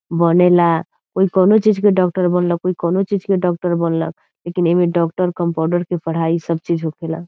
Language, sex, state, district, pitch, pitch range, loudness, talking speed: Bhojpuri, female, Bihar, Saran, 175 Hz, 170-185 Hz, -17 LUFS, 190 wpm